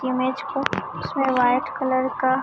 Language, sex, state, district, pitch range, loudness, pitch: Hindi, male, Chhattisgarh, Raipur, 255-275 Hz, -23 LUFS, 260 Hz